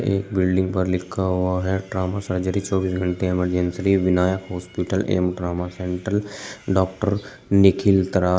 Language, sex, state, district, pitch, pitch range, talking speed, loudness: Hindi, male, Uttar Pradesh, Shamli, 95 Hz, 90-95 Hz, 135 wpm, -22 LUFS